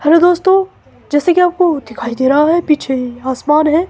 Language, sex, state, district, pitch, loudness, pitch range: Hindi, female, Himachal Pradesh, Shimla, 305 Hz, -13 LUFS, 265-350 Hz